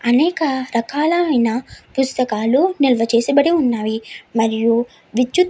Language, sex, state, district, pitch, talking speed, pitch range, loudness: Telugu, female, Andhra Pradesh, Chittoor, 250 Hz, 110 wpm, 230-290 Hz, -18 LUFS